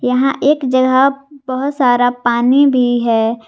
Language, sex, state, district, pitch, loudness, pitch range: Hindi, female, Jharkhand, Garhwa, 255 Hz, -14 LUFS, 245-275 Hz